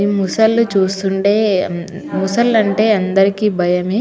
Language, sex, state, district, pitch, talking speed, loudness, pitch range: Telugu, female, Telangana, Nalgonda, 200 Hz, 105 wpm, -15 LUFS, 190-215 Hz